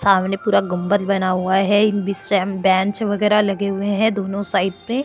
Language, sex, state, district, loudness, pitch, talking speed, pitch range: Hindi, female, Chhattisgarh, Korba, -18 LUFS, 200 Hz, 190 wpm, 190-205 Hz